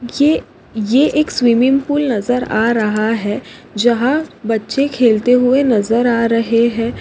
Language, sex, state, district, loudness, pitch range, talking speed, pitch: Hindi, female, Maharashtra, Pune, -15 LUFS, 225-265 Hz, 135 wpm, 235 Hz